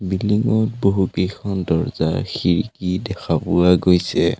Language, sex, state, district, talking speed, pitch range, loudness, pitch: Assamese, male, Assam, Sonitpur, 110 wpm, 90-105 Hz, -19 LUFS, 95 Hz